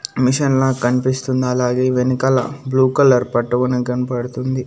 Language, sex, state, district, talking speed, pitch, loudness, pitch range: Telugu, male, Andhra Pradesh, Annamaya, 115 wpm, 130 Hz, -17 LUFS, 125-130 Hz